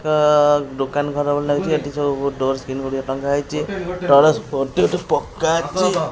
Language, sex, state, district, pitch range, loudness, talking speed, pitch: Odia, female, Odisha, Khordha, 135-150 Hz, -19 LUFS, 125 wpm, 145 Hz